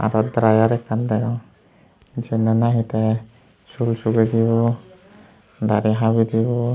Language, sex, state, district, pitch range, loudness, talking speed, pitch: Chakma, male, Tripura, Unakoti, 110-120 Hz, -20 LUFS, 115 wpm, 115 Hz